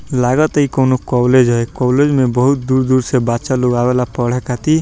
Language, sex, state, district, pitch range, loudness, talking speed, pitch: Bhojpuri, male, Bihar, Muzaffarpur, 125-135 Hz, -14 LUFS, 200 wpm, 125 Hz